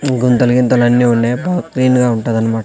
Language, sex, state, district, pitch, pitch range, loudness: Telugu, male, Andhra Pradesh, Sri Satya Sai, 125 Hz, 120-130 Hz, -13 LUFS